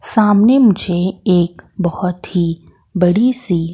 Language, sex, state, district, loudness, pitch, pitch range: Hindi, female, Madhya Pradesh, Katni, -15 LUFS, 180 Hz, 175-210 Hz